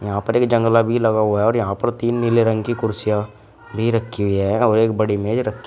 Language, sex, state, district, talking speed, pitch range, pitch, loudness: Hindi, male, Uttar Pradesh, Shamli, 265 wpm, 105-115 Hz, 110 Hz, -18 LUFS